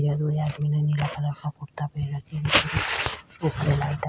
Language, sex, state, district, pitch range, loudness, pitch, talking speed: Rajasthani, female, Rajasthan, Nagaur, 145-150 Hz, -25 LUFS, 150 Hz, 45 wpm